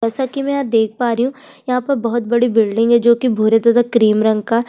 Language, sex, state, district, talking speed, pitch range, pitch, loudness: Hindi, female, Uttar Pradesh, Budaun, 280 wpm, 225-250 Hz, 235 Hz, -15 LUFS